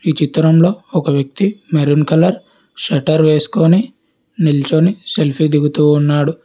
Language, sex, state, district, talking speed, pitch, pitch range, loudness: Telugu, male, Telangana, Hyderabad, 110 wpm, 160 Hz, 150-190 Hz, -14 LUFS